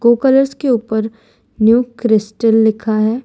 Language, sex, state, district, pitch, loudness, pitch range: Hindi, female, Gujarat, Valsad, 225 Hz, -14 LUFS, 220-240 Hz